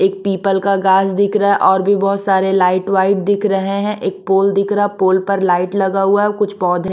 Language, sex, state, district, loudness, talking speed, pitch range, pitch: Hindi, female, Maharashtra, Mumbai Suburban, -15 LUFS, 250 wpm, 190-200 Hz, 195 Hz